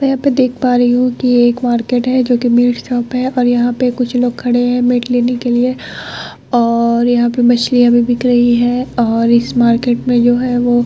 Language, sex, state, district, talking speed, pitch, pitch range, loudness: Hindi, female, Bihar, Begusarai, 220 wpm, 245 Hz, 240-250 Hz, -13 LUFS